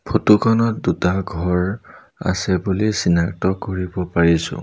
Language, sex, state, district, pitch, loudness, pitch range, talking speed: Assamese, male, Assam, Sonitpur, 95 Hz, -19 LUFS, 90-105 Hz, 115 wpm